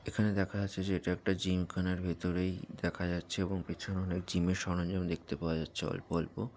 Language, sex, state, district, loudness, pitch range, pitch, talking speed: Bengali, male, West Bengal, Jalpaiguri, -35 LUFS, 85-95 Hz, 90 Hz, 200 wpm